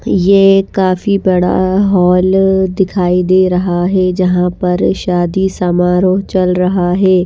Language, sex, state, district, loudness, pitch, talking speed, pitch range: Hindi, female, Chhattisgarh, Raipur, -12 LUFS, 185 Hz, 125 wpm, 180-190 Hz